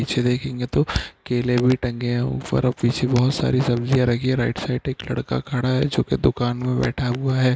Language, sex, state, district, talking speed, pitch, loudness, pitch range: Hindi, male, Bihar, Saharsa, 240 wpm, 125 Hz, -22 LUFS, 120-130 Hz